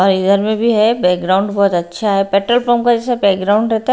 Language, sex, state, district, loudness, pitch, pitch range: Hindi, female, Bihar, Patna, -14 LUFS, 205 Hz, 195-230 Hz